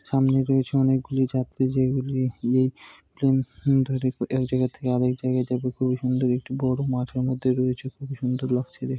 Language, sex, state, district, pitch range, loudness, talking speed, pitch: Bengali, male, West Bengal, Malda, 125-130 Hz, -24 LUFS, 155 wpm, 130 Hz